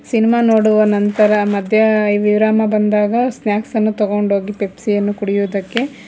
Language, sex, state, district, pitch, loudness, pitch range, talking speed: Kannada, female, Karnataka, Bangalore, 210 Hz, -15 LUFS, 205-220 Hz, 120 wpm